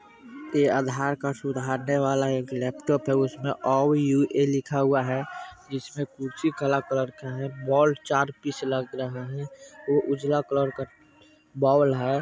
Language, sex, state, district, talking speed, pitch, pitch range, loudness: Hindi, male, Bihar, Vaishali, 155 wpm, 140 Hz, 135-145 Hz, -26 LUFS